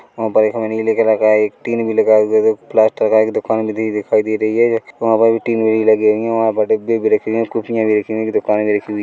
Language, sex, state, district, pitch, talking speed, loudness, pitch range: Hindi, male, Chhattisgarh, Korba, 110 Hz, 305 wpm, -15 LUFS, 110-115 Hz